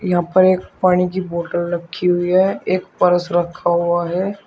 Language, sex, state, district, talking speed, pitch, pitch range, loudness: Hindi, male, Uttar Pradesh, Shamli, 190 wpm, 180 Hz, 175-185 Hz, -17 LUFS